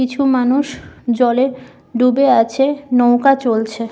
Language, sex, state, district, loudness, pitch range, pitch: Bengali, female, West Bengal, Malda, -15 LUFS, 240-270 Hz, 255 Hz